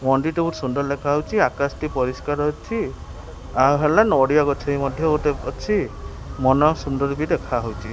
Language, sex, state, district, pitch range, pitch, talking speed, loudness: Odia, male, Odisha, Khordha, 130-150 Hz, 140 Hz, 165 wpm, -21 LUFS